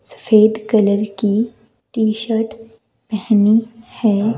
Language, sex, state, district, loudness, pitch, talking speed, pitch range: Hindi, female, Himachal Pradesh, Shimla, -16 LUFS, 220 Hz, 80 wpm, 215-225 Hz